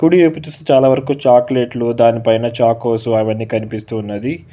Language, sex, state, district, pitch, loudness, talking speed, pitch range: Telugu, male, Telangana, Hyderabad, 120 Hz, -15 LUFS, 135 wpm, 115-135 Hz